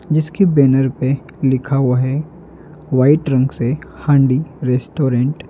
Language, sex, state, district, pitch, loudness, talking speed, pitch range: Hindi, male, Madhya Pradesh, Dhar, 140 Hz, -16 LUFS, 130 wpm, 130-155 Hz